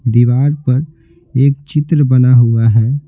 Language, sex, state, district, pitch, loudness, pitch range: Hindi, male, Bihar, Patna, 130 Hz, -12 LUFS, 120-145 Hz